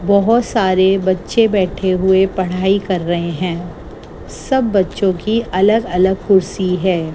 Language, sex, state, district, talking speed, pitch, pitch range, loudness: Hindi, female, Gujarat, Gandhinagar, 135 wpm, 190 Hz, 185-200 Hz, -15 LUFS